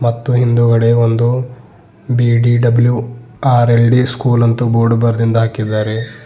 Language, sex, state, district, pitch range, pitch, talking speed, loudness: Kannada, male, Karnataka, Bidar, 115-120 Hz, 120 Hz, 95 wpm, -13 LUFS